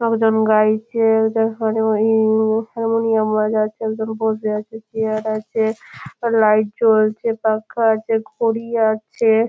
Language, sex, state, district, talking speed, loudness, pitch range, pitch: Bengali, female, West Bengal, Malda, 120 wpm, -18 LUFS, 220-225 Hz, 220 Hz